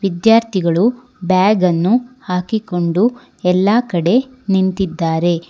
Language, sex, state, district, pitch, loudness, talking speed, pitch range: Kannada, female, Karnataka, Bangalore, 190 Hz, -16 LUFS, 65 wpm, 180-230 Hz